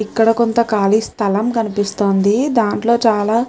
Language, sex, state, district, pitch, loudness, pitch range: Telugu, female, Telangana, Nalgonda, 220 Hz, -16 LUFS, 205-235 Hz